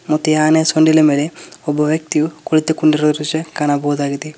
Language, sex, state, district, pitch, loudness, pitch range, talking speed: Kannada, male, Karnataka, Koppal, 155 Hz, -15 LUFS, 150-155 Hz, 135 wpm